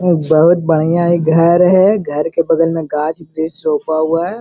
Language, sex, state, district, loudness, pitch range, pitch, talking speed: Hindi, male, Bihar, Araria, -13 LUFS, 160-170 Hz, 165 Hz, 205 wpm